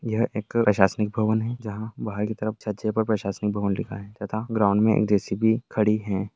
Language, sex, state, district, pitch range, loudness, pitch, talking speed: Hindi, male, Bihar, Jamui, 100-110 Hz, -25 LUFS, 105 Hz, 200 wpm